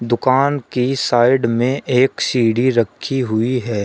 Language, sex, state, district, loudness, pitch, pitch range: Hindi, male, Uttar Pradesh, Shamli, -17 LUFS, 125 Hz, 115-130 Hz